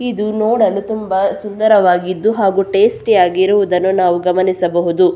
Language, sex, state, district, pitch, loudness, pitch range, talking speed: Kannada, female, Karnataka, Belgaum, 195 Hz, -14 LUFS, 180-215 Hz, 105 wpm